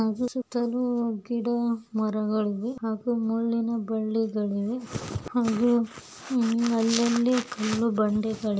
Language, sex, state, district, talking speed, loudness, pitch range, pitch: Kannada, female, Karnataka, Belgaum, 90 wpm, -27 LUFS, 220-240 Hz, 230 Hz